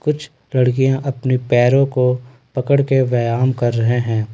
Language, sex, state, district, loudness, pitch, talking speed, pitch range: Hindi, male, Jharkhand, Ranchi, -17 LUFS, 130 Hz, 150 wpm, 120-135 Hz